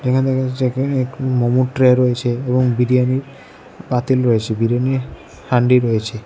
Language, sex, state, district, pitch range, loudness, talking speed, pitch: Bengali, male, Tripura, West Tripura, 120-130 Hz, -17 LUFS, 125 wpm, 125 Hz